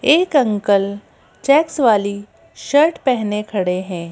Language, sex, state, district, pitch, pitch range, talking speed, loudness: Hindi, female, Madhya Pradesh, Bhopal, 210 Hz, 200-285 Hz, 115 wpm, -17 LUFS